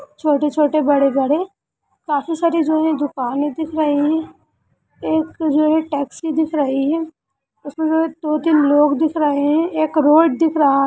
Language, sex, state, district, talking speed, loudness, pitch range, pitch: Hindi, female, Bihar, Lakhisarai, 170 wpm, -17 LUFS, 290-315 Hz, 305 Hz